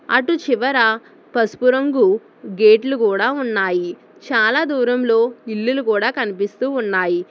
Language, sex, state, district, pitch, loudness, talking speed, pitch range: Telugu, female, Telangana, Hyderabad, 235 Hz, -18 LUFS, 105 wpm, 215-260 Hz